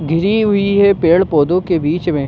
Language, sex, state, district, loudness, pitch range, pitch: Hindi, male, Jharkhand, Sahebganj, -13 LUFS, 160-200 Hz, 175 Hz